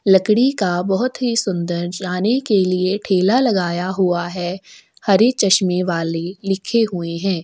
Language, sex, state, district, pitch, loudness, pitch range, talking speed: Hindi, female, Chhattisgarh, Sukma, 190 Hz, -18 LUFS, 180-205 Hz, 145 wpm